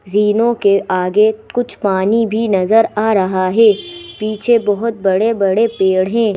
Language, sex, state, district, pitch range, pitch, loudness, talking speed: Hindi, female, Madhya Pradesh, Bhopal, 195-230 Hz, 215 Hz, -14 LUFS, 140 wpm